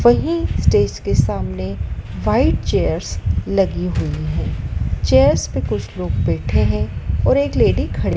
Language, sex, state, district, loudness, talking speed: Hindi, female, Madhya Pradesh, Dhar, -19 LUFS, 140 wpm